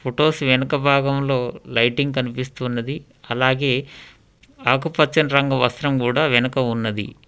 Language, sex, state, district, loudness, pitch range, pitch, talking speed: Telugu, male, Telangana, Hyderabad, -20 LUFS, 125-140 Hz, 130 Hz, 100 wpm